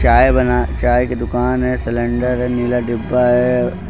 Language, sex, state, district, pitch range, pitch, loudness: Hindi, male, Uttar Pradesh, Lucknow, 120-125 Hz, 125 Hz, -16 LUFS